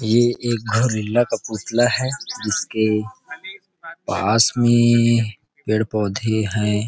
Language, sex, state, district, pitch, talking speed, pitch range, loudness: Hindi, male, Chhattisgarh, Rajnandgaon, 115 Hz, 105 wpm, 110-120 Hz, -19 LUFS